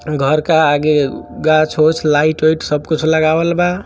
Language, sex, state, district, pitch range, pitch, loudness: Hindi, male, Bihar, East Champaran, 150-160 Hz, 155 Hz, -14 LUFS